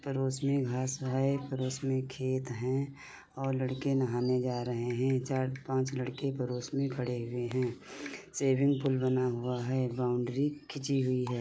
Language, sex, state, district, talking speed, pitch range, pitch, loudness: Hindi, male, Uttar Pradesh, Muzaffarnagar, 160 wpm, 125-135 Hz, 130 Hz, -33 LUFS